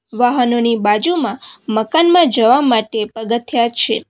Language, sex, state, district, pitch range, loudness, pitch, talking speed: Gujarati, female, Gujarat, Valsad, 225-275 Hz, -15 LUFS, 235 Hz, 100 wpm